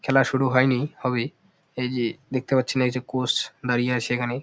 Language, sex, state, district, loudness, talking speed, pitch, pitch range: Bengali, male, West Bengal, Jalpaiguri, -24 LUFS, 190 wpm, 130 Hz, 125-135 Hz